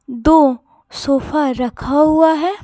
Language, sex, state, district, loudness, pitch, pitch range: Hindi, female, Bihar, Patna, -14 LUFS, 300 Hz, 265-315 Hz